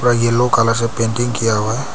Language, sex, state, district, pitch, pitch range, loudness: Hindi, male, Arunachal Pradesh, Papum Pare, 115 Hz, 115-120 Hz, -16 LUFS